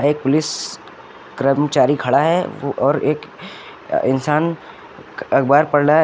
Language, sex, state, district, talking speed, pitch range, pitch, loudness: Hindi, male, Uttar Pradesh, Lucknow, 120 wpm, 140-150 Hz, 145 Hz, -17 LUFS